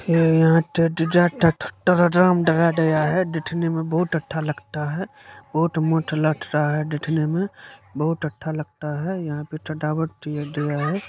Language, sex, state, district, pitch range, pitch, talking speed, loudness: Hindi, male, Bihar, Supaul, 150-170 Hz, 160 Hz, 120 wpm, -22 LUFS